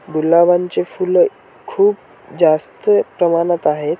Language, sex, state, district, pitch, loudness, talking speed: Marathi, male, Maharashtra, Washim, 175 Hz, -15 LUFS, 90 wpm